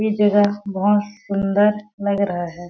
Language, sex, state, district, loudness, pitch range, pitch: Hindi, female, Chhattisgarh, Balrampur, -19 LUFS, 195-210 Hz, 205 Hz